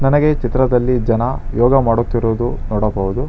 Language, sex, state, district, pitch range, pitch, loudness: Kannada, male, Karnataka, Bangalore, 115-130 Hz, 120 Hz, -16 LUFS